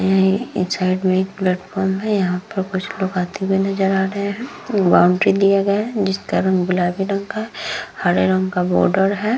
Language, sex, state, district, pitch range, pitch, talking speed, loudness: Hindi, female, Bihar, Vaishali, 185-200 Hz, 190 Hz, 210 wpm, -19 LUFS